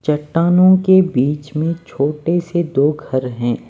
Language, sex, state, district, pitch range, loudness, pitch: Hindi, male, Maharashtra, Mumbai Suburban, 140-170 Hz, -16 LUFS, 150 Hz